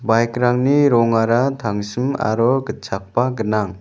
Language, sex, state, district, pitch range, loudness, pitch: Garo, male, Meghalaya, West Garo Hills, 110-130 Hz, -18 LUFS, 115 Hz